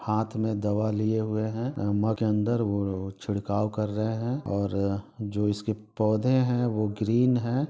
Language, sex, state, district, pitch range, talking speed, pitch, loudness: Hindi, male, Bihar, Sitamarhi, 105-115 Hz, 165 wpm, 110 Hz, -27 LUFS